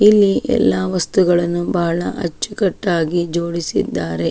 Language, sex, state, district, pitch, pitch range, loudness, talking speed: Kannada, female, Karnataka, Shimoga, 170 Hz, 165-185 Hz, -18 LUFS, 85 wpm